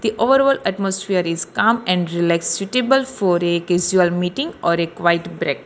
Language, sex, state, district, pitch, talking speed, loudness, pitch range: English, female, Telangana, Hyderabad, 180 Hz, 170 wpm, -18 LUFS, 170-225 Hz